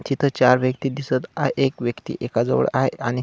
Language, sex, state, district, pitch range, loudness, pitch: Marathi, male, Maharashtra, Solapur, 125-135 Hz, -21 LUFS, 130 Hz